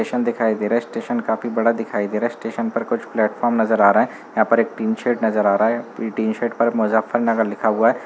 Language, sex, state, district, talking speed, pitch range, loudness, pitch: Hindi, male, Uttar Pradesh, Muzaffarnagar, 270 wpm, 110-115 Hz, -20 LUFS, 115 Hz